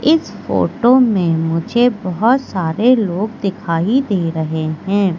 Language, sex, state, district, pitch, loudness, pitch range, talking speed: Hindi, female, Madhya Pradesh, Katni, 195 Hz, -16 LUFS, 165-240 Hz, 125 wpm